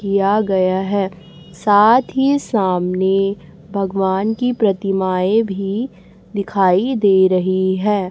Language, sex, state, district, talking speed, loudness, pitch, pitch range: Hindi, female, Chhattisgarh, Raipur, 105 wpm, -17 LUFS, 195 Hz, 185-210 Hz